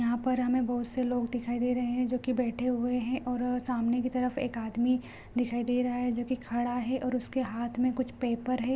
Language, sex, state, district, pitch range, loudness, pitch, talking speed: Hindi, female, Bihar, Supaul, 240-255 Hz, -31 LUFS, 245 Hz, 245 wpm